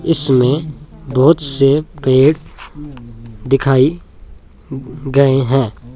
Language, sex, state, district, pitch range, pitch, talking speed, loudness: Hindi, male, Himachal Pradesh, Shimla, 125-145 Hz, 135 Hz, 70 wpm, -14 LUFS